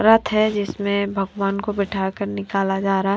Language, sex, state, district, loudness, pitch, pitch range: Hindi, female, Himachal Pradesh, Shimla, -21 LUFS, 200 Hz, 195-205 Hz